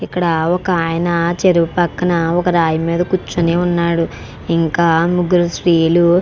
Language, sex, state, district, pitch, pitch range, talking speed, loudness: Telugu, female, Andhra Pradesh, Krishna, 170 Hz, 165-175 Hz, 125 wpm, -15 LUFS